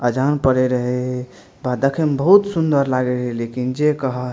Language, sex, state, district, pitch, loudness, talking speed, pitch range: Maithili, male, Bihar, Madhepura, 130 Hz, -18 LUFS, 195 wpm, 125-145 Hz